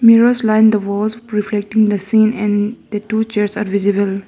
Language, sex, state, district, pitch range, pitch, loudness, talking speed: English, female, Arunachal Pradesh, Lower Dibang Valley, 205-220 Hz, 210 Hz, -15 LUFS, 180 wpm